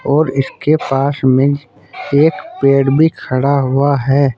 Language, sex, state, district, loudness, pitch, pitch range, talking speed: Hindi, male, Uttar Pradesh, Saharanpur, -14 LUFS, 140 Hz, 135-145 Hz, 135 wpm